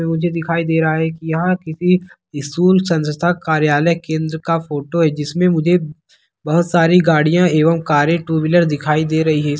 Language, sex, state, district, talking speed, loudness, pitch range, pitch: Hindi, male, Bihar, Begusarai, 175 wpm, -16 LUFS, 155-170 Hz, 165 Hz